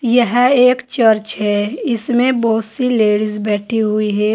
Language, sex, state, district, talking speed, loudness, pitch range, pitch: Hindi, female, Uttar Pradesh, Saharanpur, 150 wpm, -15 LUFS, 215-245 Hz, 225 Hz